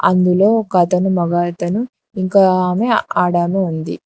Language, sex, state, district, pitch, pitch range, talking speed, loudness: Telugu, female, Telangana, Hyderabad, 185 Hz, 175-195 Hz, 120 wpm, -15 LUFS